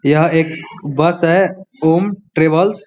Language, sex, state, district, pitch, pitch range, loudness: Hindi, male, Bihar, Muzaffarpur, 165 Hz, 160-190 Hz, -15 LUFS